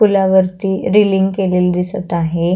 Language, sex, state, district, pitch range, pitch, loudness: Marathi, female, Maharashtra, Pune, 180-195 Hz, 190 Hz, -15 LUFS